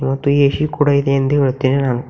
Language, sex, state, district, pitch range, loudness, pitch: Kannada, female, Karnataka, Bidar, 135-140 Hz, -15 LUFS, 140 Hz